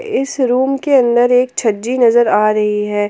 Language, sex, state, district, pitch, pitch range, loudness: Hindi, female, Jharkhand, Palamu, 245 Hz, 215-260 Hz, -13 LUFS